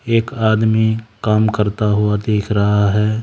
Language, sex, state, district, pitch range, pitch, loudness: Hindi, male, Haryana, Charkhi Dadri, 105-110 Hz, 110 Hz, -16 LUFS